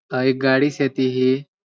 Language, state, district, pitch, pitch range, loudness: Bhili, Maharashtra, Dhule, 130 Hz, 130-140 Hz, -19 LUFS